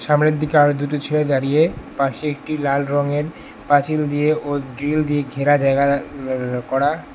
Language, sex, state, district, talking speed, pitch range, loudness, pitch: Bengali, male, West Bengal, Alipurduar, 150 wpm, 140-150 Hz, -19 LUFS, 145 Hz